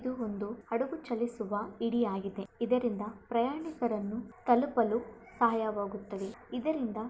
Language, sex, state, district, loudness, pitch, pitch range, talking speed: Kannada, female, Karnataka, Bellary, -33 LUFS, 230 Hz, 210-240 Hz, 85 wpm